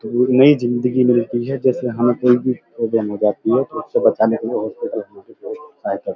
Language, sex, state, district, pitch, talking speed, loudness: Hindi, male, Uttar Pradesh, Muzaffarnagar, 125 Hz, 235 wpm, -18 LUFS